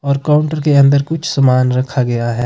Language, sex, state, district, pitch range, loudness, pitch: Hindi, male, Himachal Pradesh, Shimla, 125-150 Hz, -13 LUFS, 140 Hz